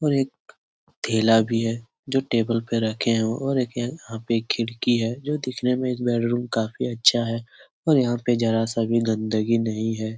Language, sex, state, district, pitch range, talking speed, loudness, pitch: Hindi, male, Bihar, Jahanabad, 115-125 Hz, 195 wpm, -23 LUFS, 115 Hz